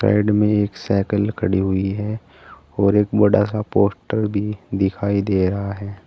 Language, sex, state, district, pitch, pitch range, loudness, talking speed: Hindi, male, Uttar Pradesh, Saharanpur, 100 Hz, 100-105 Hz, -19 LUFS, 170 wpm